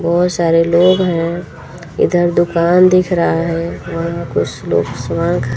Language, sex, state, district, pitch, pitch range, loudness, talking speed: Hindi, female, Uttar Pradesh, Lucknow, 170 Hz, 170-175 Hz, -14 LUFS, 130 wpm